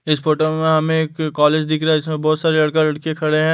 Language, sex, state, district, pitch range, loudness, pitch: Hindi, male, Delhi, New Delhi, 155-160 Hz, -17 LUFS, 155 Hz